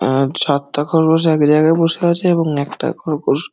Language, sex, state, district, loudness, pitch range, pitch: Bengali, male, West Bengal, Dakshin Dinajpur, -15 LUFS, 145-165 Hz, 155 Hz